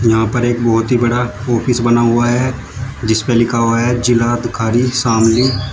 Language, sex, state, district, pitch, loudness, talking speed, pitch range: Hindi, male, Uttar Pradesh, Shamli, 120 Hz, -14 LUFS, 180 wpm, 115-120 Hz